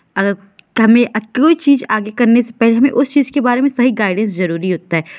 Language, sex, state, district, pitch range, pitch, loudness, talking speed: Hindi, female, Uttar Pradesh, Varanasi, 200-255 Hz, 230 Hz, -14 LUFS, 230 wpm